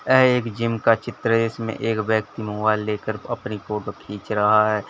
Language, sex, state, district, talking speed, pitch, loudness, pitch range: Hindi, male, Uttar Pradesh, Lalitpur, 185 wpm, 110 Hz, -22 LUFS, 105-115 Hz